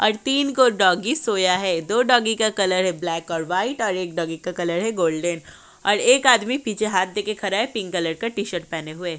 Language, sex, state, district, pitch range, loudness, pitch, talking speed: Hindi, female, Uttar Pradesh, Jyotiba Phule Nagar, 175-225 Hz, -21 LUFS, 195 Hz, 230 wpm